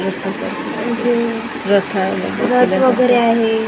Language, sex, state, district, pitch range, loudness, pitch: Marathi, female, Maharashtra, Gondia, 220-245 Hz, -16 LUFS, 230 Hz